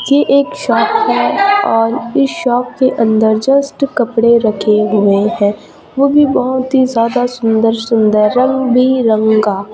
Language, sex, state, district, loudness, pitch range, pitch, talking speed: Hindi, female, Chhattisgarh, Raipur, -12 LUFS, 220-270 Hz, 240 Hz, 135 wpm